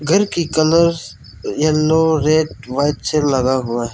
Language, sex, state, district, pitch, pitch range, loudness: Hindi, male, Arunachal Pradesh, Lower Dibang Valley, 155 Hz, 130-160 Hz, -16 LUFS